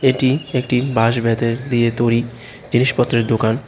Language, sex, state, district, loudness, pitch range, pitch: Bengali, male, Tripura, West Tripura, -17 LUFS, 115-130 Hz, 120 Hz